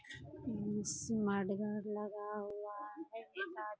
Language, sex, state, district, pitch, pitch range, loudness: Hindi, female, Bihar, Purnia, 210 Hz, 205-215 Hz, -41 LUFS